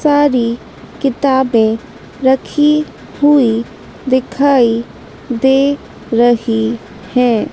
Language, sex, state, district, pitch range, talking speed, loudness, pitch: Hindi, female, Madhya Pradesh, Dhar, 230-280 Hz, 65 wpm, -14 LUFS, 250 Hz